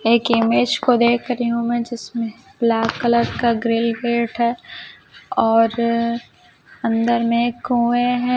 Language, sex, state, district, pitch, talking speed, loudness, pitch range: Hindi, female, Chhattisgarh, Raipur, 235 Hz, 135 wpm, -19 LUFS, 230-240 Hz